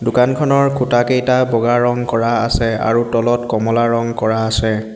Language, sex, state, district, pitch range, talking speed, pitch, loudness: Assamese, male, Assam, Hailakandi, 115-120 Hz, 145 wpm, 115 Hz, -15 LUFS